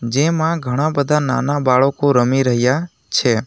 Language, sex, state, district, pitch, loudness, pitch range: Gujarati, male, Gujarat, Navsari, 140 Hz, -17 LUFS, 125-150 Hz